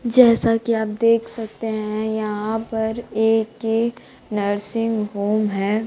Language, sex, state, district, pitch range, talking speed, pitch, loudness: Hindi, female, Bihar, Kaimur, 215-230 Hz, 120 wpm, 220 Hz, -21 LUFS